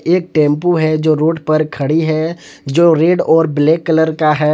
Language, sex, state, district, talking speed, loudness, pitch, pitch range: Hindi, male, Jharkhand, Palamu, 200 wpm, -13 LUFS, 160 Hz, 155-165 Hz